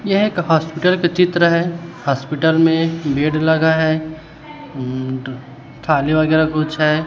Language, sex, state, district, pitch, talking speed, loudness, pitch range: Hindi, male, Chhattisgarh, Raipur, 155 Hz, 135 wpm, -17 LUFS, 150-165 Hz